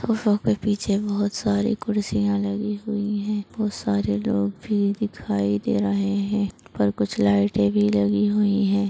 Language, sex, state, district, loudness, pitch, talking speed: Hindi, female, Chhattisgarh, Bastar, -23 LUFS, 200 Hz, 170 wpm